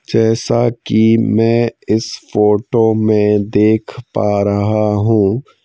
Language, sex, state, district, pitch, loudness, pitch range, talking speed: Hindi, male, Madhya Pradesh, Bhopal, 110 Hz, -14 LUFS, 105-115 Hz, 105 wpm